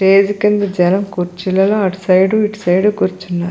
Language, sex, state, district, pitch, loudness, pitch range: Telugu, female, Andhra Pradesh, Krishna, 190 Hz, -14 LUFS, 185-205 Hz